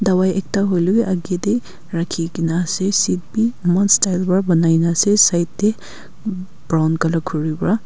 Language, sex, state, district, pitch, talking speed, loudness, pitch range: Nagamese, female, Nagaland, Kohima, 185 Hz, 160 wpm, -18 LUFS, 170-200 Hz